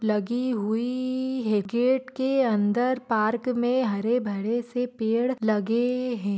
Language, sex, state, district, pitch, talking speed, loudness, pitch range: Hindi, female, Uttar Pradesh, Deoria, 240 Hz, 120 wpm, -25 LUFS, 220-255 Hz